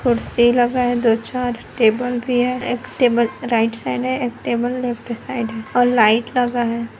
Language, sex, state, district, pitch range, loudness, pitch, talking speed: Hindi, female, Chhattisgarh, Kabirdham, 235-245 Hz, -19 LUFS, 245 Hz, 195 wpm